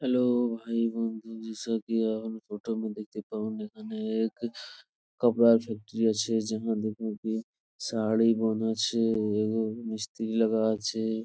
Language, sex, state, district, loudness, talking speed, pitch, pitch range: Bengali, male, West Bengal, Purulia, -29 LUFS, 95 wpm, 110 Hz, 110-115 Hz